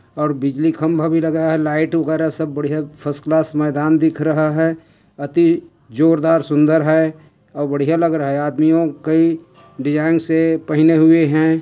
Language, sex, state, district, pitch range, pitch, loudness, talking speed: Hindi, male, Chhattisgarh, Kabirdham, 150-160 Hz, 160 Hz, -16 LUFS, 175 wpm